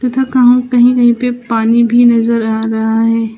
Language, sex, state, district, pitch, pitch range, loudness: Hindi, female, Uttar Pradesh, Lucknow, 235 Hz, 225-245 Hz, -11 LUFS